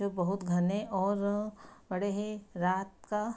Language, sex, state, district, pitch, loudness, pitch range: Hindi, female, Bihar, Saharsa, 200 Hz, -33 LUFS, 190-210 Hz